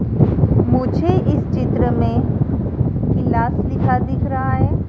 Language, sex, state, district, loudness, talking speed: Hindi, female, Madhya Pradesh, Dhar, -18 LUFS, 110 wpm